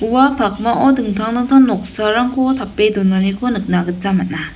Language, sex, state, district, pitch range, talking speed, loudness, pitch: Garo, female, Meghalaya, West Garo Hills, 200-250 Hz, 130 wpm, -15 LUFS, 220 Hz